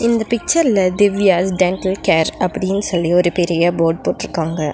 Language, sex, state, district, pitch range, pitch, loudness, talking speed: Tamil, female, Tamil Nadu, Nilgiris, 170-200 Hz, 185 Hz, -16 LUFS, 140 wpm